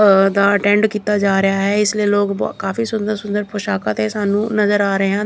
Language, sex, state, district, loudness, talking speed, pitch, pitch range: Punjabi, female, Chandigarh, Chandigarh, -17 LUFS, 230 wpm, 205 Hz, 195-210 Hz